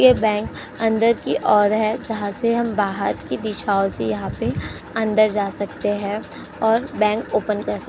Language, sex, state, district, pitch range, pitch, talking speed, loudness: Hindi, female, Uttar Pradesh, Jyotiba Phule Nagar, 205-225 Hz, 215 Hz, 190 wpm, -21 LUFS